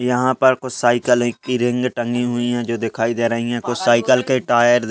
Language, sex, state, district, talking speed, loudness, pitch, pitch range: Hindi, male, Chhattisgarh, Rajnandgaon, 245 wpm, -18 LUFS, 120 Hz, 120-125 Hz